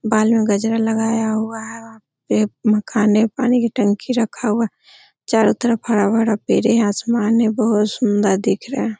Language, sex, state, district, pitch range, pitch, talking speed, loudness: Hindi, female, Uttar Pradesh, Hamirpur, 215-230 Hz, 225 Hz, 185 wpm, -18 LUFS